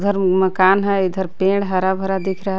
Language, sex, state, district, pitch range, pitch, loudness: Hindi, female, Jharkhand, Garhwa, 190-195 Hz, 190 Hz, -18 LUFS